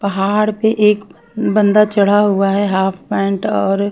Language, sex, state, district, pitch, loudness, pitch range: Hindi, female, Haryana, Charkhi Dadri, 205 Hz, -15 LUFS, 195-210 Hz